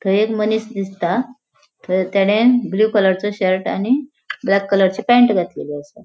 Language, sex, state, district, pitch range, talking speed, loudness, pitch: Konkani, female, Goa, North and South Goa, 190-230 Hz, 150 wpm, -17 LUFS, 205 Hz